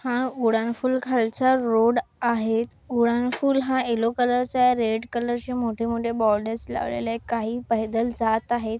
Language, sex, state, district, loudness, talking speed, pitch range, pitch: Marathi, female, Maharashtra, Nagpur, -24 LUFS, 155 wpm, 225-245 Hz, 235 Hz